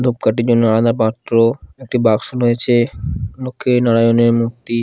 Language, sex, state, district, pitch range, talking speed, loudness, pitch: Bengali, male, Odisha, Khordha, 115-125 Hz, 135 wpm, -16 LUFS, 115 Hz